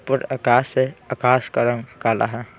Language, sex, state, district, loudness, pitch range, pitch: Hindi, male, Bihar, Patna, -20 LUFS, 120-130 Hz, 130 Hz